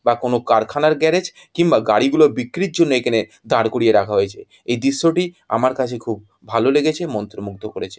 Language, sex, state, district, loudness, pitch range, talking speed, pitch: Bengali, male, West Bengal, Jhargram, -18 LUFS, 115-170 Hz, 175 wpm, 130 Hz